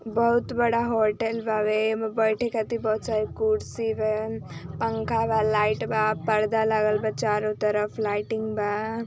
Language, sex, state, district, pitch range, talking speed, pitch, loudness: Hindi, female, Uttar Pradesh, Ghazipur, 215-225 Hz, 145 wpm, 220 Hz, -25 LUFS